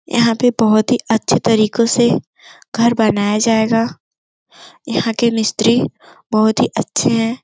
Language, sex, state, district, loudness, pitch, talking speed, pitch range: Hindi, female, Uttar Pradesh, Gorakhpur, -15 LUFS, 225 Hz, 135 wpm, 220-235 Hz